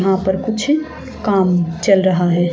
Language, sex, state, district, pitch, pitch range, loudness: Hindi, female, Haryana, Charkhi Dadri, 190 Hz, 175-205 Hz, -16 LUFS